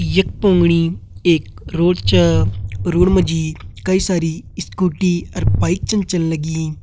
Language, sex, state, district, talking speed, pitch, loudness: Hindi, male, Uttarakhand, Uttarkashi, 130 wpm, 165 Hz, -17 LUFS